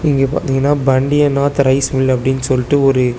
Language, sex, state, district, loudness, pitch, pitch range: Tamil, male, Tamil Nadu, Chennai, -14 LUFS, 135 Hz, 130-140 Hz